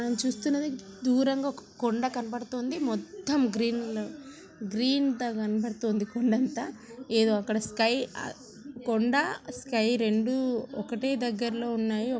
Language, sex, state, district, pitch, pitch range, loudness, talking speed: Telugu, female, Andhra Pradesh, Chittoor, 240 Hz, 225-260 Hz, -29 LUFS, 110 wpm